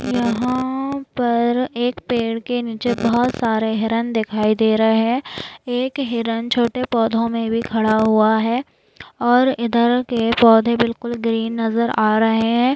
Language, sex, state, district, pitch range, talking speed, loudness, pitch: Hindi, female, Maharashtra, Nagpur, 225-245 Hz, 150 wpm, -18 LUFS, 235 Hz